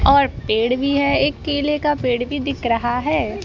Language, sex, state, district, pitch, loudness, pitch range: Hindi, female, Madhya Pradesh, Bhopal, 280 Hz, -19 LUFS, 245-290 Hz